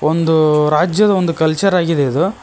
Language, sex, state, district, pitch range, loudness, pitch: Kannada, male, Karnataka, Koppal, 155-185 Hz, -14 LUFS, 165 Hz